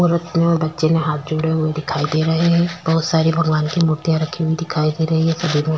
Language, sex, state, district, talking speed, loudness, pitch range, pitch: Hindi, female, Chhattisgarh, Sukma, 260 wpm, -18 LUFS, 155-165 Hz, 160 Hz